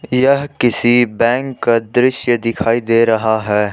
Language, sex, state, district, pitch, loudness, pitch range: Hindi, male, Jharkhand, Ranchi, 120 Hz, -15 LUFS, 115-125 Hz